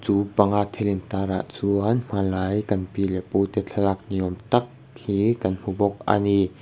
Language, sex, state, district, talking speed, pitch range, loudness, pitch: Mizo, male, Mizoram, Aizawl, 190 wpm, 95-105 Hz, -24 LUFS, 100 Hz